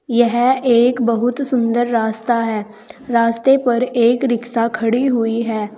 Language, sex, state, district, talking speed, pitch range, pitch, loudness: Hindi, female, Uttar Pradesh, Saharanpur, 135 wpm, 230-250 Hz, 235 Hz, -16 LUFS